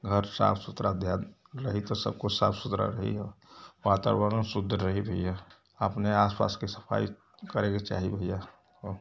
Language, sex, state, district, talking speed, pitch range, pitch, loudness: Hindi, male, Uttar Pradesh, Varanasi, 155 wpm, 95-105 Hz, 100 Hz, -30 LUFS